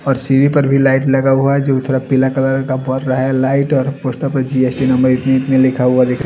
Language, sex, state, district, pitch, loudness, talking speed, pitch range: Hindi, male, Chandigarh, Chandigarh, 135 Hz, -14 LUFS, 280 wpm, 130-135 Hz